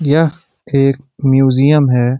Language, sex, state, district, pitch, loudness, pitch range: Hindi, male, Bihar, Jamui, 135 Hz, -13 LUFS, 135-150 Hz